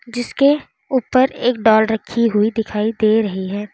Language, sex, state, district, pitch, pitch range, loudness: Hindi, female, Uttar Pradesh, Lalitpur, 225 Hz, 215-245 Hz, -17 LUFS